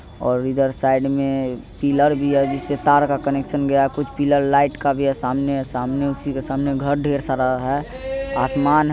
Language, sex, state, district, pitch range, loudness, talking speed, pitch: Maithili, male, Bihar, Supaul, 135-145 Hz, -20 LUFS, 180 wpm, 140 Hz